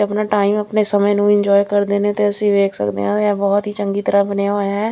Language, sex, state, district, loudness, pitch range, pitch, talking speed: Punjabi, female, Chandigarh, Chandigarh, -16 LUFS, 200-205 Hz, 205 Hz, 255 wpm